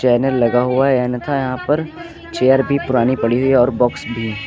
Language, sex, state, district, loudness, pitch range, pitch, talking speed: Hindi, male, Uttar Pradesh, Lucknow, -16 LUFS, 120-135 Hz, 130 Hz, 215 wpm